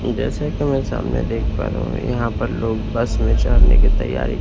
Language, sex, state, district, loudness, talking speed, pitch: Hindi, male, Maharashtra, Mumbai Suburban, -20 LUFS, 220 wpm, 110 Hz